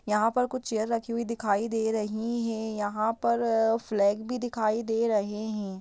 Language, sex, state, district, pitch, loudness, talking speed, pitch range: Hindi, female, Bihar, Jamui, 225 Hz, -28 LUFS, 195 wpm, 215-230 Hz